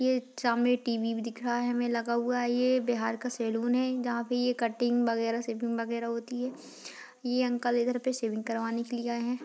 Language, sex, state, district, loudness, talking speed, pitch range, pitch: Hindi, female, Bihar, Jahanabad, -30 LUFS, 215 wpm, 235-245 Hz, 240 Hz